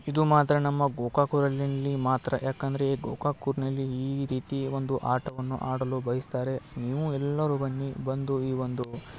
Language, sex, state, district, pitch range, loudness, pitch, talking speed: Kannada, male, Karnataka, Belgaum, 130-140 Hz, -29 LUFS, 135 Hz, 145 wpm